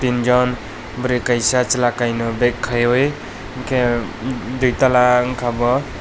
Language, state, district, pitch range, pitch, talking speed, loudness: Kokborok, Tripura, West Tripura, 120-125 Hz, 125 Hz, 110 wpm, -18 LUFS